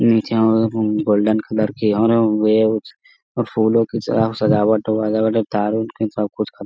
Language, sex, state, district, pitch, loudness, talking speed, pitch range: Hindi, male, Bihar, Jamui, 110 Hz, -18 LUFS, 205 wpm, 105-110 Hz